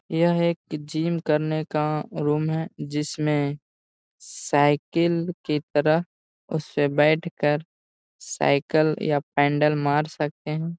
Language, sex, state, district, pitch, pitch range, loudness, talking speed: Hindi, male, Bihar, Gaya, 150 Hz, 145-160 Hz, -24 LUFS, 110 wpm